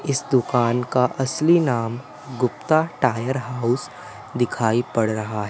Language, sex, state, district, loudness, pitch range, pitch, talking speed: Hindi, male, Madhya Pradesh, Umaria, -21 LUFS, 120-140 Hz, 125 Hz, 130 wpm